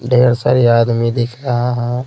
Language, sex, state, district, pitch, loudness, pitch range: Hindi, male, Bihar, Patna, 120 Hz, -14 LUFS, 120-125 Hz